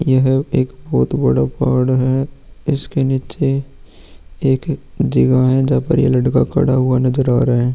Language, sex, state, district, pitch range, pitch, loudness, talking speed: Hindi, male, Bihar, Vaishali, 125-135 Hz, 130 Hz, -16 LUFS, 165 wpm